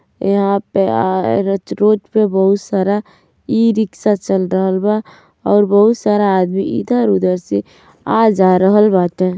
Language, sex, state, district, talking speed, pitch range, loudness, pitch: Bhojpuri, female, Uttar Pradesh, Gorakhpur, 120 wpm, 185-210 Hz, -14 LUFS, 200 Hz